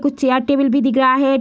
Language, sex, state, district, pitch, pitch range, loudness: Hindi, female, Bihar, Madhepura, 270 Hz, 260-275 Hz, -15 LUFS